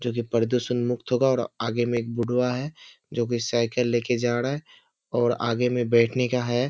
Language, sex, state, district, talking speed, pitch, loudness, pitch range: Hindi, male, Bihar, Kishanganj, 215 wpm, 120 Hz, -25 LUFS, 120-125 Hz